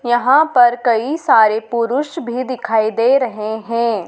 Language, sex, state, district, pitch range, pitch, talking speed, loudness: Hindi, female, Madhya Pradesh, Dhar, 225-260 Hz, 240 Hz, 145 wpm, -15 LUFS